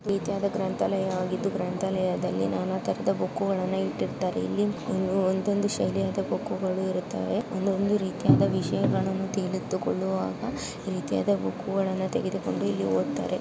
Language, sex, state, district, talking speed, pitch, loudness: Kannada, female, Karnataka, Chamarajanagar, 120 wpm, 190 Hz, -28 LUFS